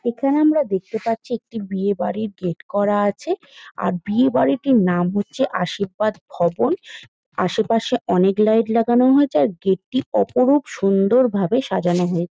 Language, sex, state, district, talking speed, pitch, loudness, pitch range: Bengali, female, West Bengal, Jalpaiguri, 150 wpm, 215 Hz, -19 LUFS, 190-250 Hz